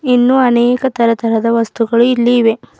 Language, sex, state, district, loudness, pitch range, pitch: Kannada, female, Karnataka, Bidar, -12 LUFS, 230-245 Hz, 235 Hz